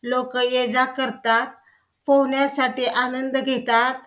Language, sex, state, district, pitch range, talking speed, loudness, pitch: Marathi, female, Maharashtra, Pune, 245-265 Hz, 105 wpm, -21 LUFS, 255 Hz